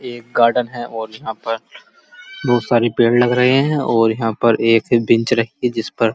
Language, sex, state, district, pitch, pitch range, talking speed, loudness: Hindi, male, Uttar Pradesh, Muzaffarnagar, 115 Hz, 115-125 Hz, 225 wpm, -17 LUFS